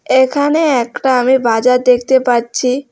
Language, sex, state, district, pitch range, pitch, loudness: Bengali, female, West Bengal, Alipurduar, 245-265 Hz, 255 Hz, -13 LUFS